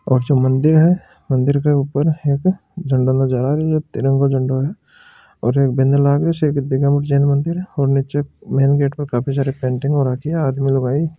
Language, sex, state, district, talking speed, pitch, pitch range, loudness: Marwari, male, Rajasthan, Churu, 220 wpm, 140 Hz, 135-150 Hz, -17 LUFS